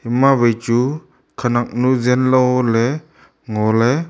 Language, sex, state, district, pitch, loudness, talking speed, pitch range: Wancho, male, Arunachal Pradesh, Longding, 125 Hz, -16 LUFS, 130 wpm, 120-130 Hz